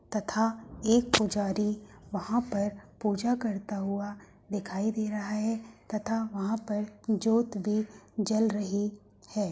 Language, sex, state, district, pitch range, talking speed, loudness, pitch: Hindi, female, Uttar Pradesh, Hamirpur, 205-220 Hz, 125 wpm, -31 LUFS, 210 Hz